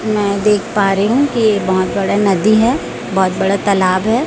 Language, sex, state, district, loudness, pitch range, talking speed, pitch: Hindi, female, Chhattisgarh, Raipur, -14 LUFS, 195-215 Hz, 210 wpm, 205 Hz